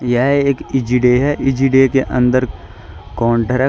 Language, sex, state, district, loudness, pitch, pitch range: Hindi, male, Uttar Pradesh, Shamli, -15 LUFS, 125 Hz, 120-135 Hz